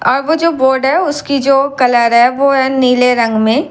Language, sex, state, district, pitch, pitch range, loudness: Hindi, female, Bihar, Katihar, 265 Hz, 250-275 Hz, -11 LUFS